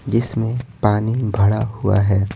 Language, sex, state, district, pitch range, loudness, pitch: Hindi, male, Bihar, Patna, 100-115 Hz, -19 LUFS, 110 Hz